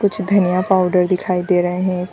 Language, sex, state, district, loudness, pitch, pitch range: Hindi, female, Bihar, Gaya, -17 LUFS, 185 Hz, 180-190 Hz